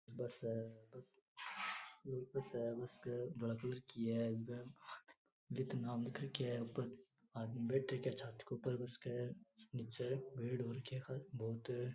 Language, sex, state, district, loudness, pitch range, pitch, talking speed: Rajasthani, male, Rajasthan, Churu, -45 LUFS, 120-130 Hz, 125 Hz, 110 wpm